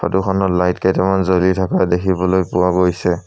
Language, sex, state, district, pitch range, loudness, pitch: Assamese, male, Assam, Sonitpur, 90-95 Hz, -16 LUFS, 95 Hz